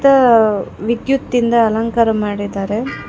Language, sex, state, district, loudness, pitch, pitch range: Kannada, female, Karnataka, Bangalore, -15 LUFS, 230 Hz, 215-240 Hz